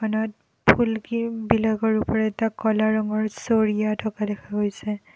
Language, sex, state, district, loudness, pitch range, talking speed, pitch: Assamese, female, Assam, Kamrup Metropolitan, -23 LUFS, 210-220 Hz, 130 wpm, 220 Hz